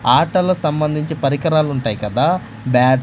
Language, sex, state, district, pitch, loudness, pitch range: Telugu, male, Andhra Pradesh, Manyam, 150 Hz, -17 LUFS, 125-160 Hz